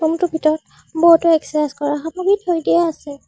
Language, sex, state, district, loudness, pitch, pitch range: Assamese, female, Assam, Sonitpur, -17 LUFS, 320 Hz, 310-340 Hz